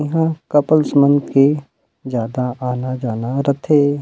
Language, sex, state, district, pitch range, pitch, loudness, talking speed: Chhattisgarhi, male, Chhattisgarh, Rajnandgaon, 125-150 Hz, 140 Hz, -17 LUFS, 105 wpm